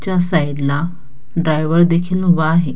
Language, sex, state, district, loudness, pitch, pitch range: Marathi, female, Maharashtra, Dhule, -16 LUFS, 165 Hz, 145-175 Hz